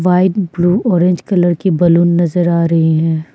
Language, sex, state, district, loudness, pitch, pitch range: Hindi, female, Arunachal Pradesh, Papum Pare, -13 LUFS, 175 Hz, 170-180 Hz